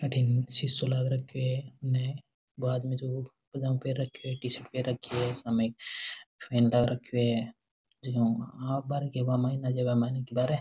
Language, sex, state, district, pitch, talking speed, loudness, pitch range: Rajasthani, male, Rajasthan, Nagaur, 130 Hz, 135 wpm, -30 LUFS, 120-130 Hz